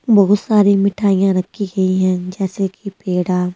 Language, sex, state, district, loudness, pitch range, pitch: Hindi, female, Delhi, New Delhi, -16 LUFS, 185-200 Hz, 195 Hz